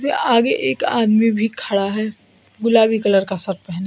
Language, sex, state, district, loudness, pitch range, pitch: Hindi, female, Bihar, Kaimur, -18 LUFS, 195-225 Hz, 215 Hz